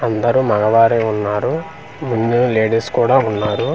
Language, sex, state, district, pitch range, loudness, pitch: Telugu, male, Andhra Pradesh, Manyam, 110-125 Hz, -16 LUFS, 115 Hz